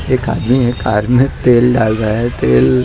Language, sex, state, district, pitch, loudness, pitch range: Hindi, male, Maharashtra, Mumbai Suburban, 115 Hz, -13 LUFS, 105-125 Hz